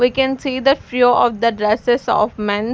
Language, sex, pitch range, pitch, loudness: English, female, 215-260 Hz, 240 Hz, -16 LUFS